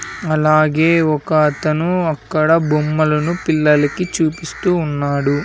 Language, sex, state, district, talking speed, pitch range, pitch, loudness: Telugu, male, Andhra Pradesh, Sri Satya Sai, 90 wpm, 150-165 Hz, 155 Hz, -16 LUFS